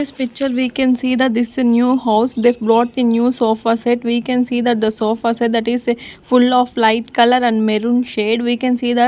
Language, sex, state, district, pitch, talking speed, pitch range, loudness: English, female, Maharashtra, Gondia, 240 Hz, 250 wpm, 230-250 Hz, -16 LUFS